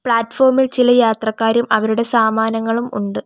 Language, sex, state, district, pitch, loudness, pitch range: Malayalam, female, Kerala, Kollam, 230 Hz, -15 LUFS, 220-245 Hz